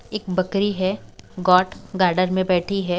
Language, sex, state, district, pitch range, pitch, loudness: Hindi, female, Bihar, West Champaran, 185-195 Hz, 185 Hz, -21 LUFS